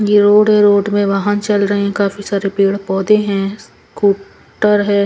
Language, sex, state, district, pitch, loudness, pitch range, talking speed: Hindi, female, Punjab, Pathankot, 205 Hz, -14 LUFS, 200-205 Hz, 200 wpm